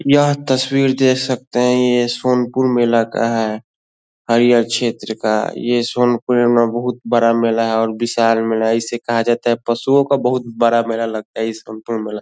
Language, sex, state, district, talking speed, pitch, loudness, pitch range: Hindi, male, Bihar, Lakhisarai, 190 wpm, 120 Hz, -16 LUFS, 115-125 Hz